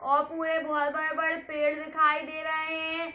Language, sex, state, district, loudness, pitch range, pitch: Hindi, female, Uttar Pradesh, Hamirpur, -28 LUFS, 300-320 Hz, 315 Hz